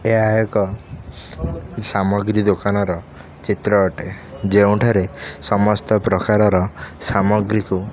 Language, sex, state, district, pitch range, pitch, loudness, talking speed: Odia, male, Odisha, Khordha, 95-105 Hz, 100 Hz, -18 LUFS, 115 wpm